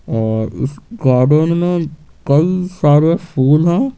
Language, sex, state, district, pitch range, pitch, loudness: Hindi, male, Bihar, Patna, 135-175 Hz, 155 Hz, -14 LUFS